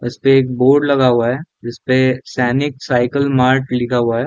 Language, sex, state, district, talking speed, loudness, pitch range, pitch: Hindi, male, Jharkhand, Jamtara, 185 wpm, -15 LUFS, 120-135 Hz, 130 Hz